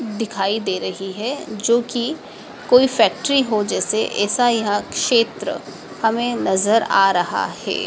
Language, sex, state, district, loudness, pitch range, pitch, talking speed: Hindi, female, Madhya Pradesh, Dhar, -19 LUFS, 205-240 Hz, 225 Hz, 135 wpm